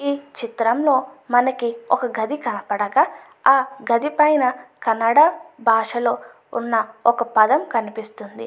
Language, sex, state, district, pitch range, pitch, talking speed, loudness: Telugu, female, Andhra Pradesh, Anantapur, 230-270 Hz, 240 Hz, 105 wpm, -20 LUFS